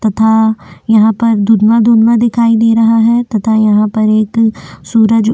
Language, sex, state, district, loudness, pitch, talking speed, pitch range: Hindi, female, Chhattisgarh, Korba, -10 LUFS, 225 Hz, 145 wpm, 220-230 Hz